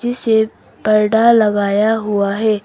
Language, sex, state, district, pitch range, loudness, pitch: Hindi, female, Arunachal Pradesh, Papum Pare, 205-225 Hz, -15 LUFS, 215 Hz